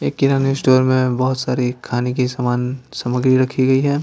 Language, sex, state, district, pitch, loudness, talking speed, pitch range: Hindi, male, Bihar, Patna, 130 Hz, -17 LUFS, 195 wpm, 125-130 Hz